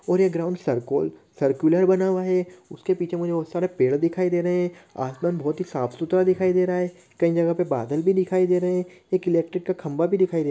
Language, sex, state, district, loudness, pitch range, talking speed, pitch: Hindi, male, Chhattisgarh, Korba, -23 LUFS, 160-185 Hz, 245 wpm, 175 Hz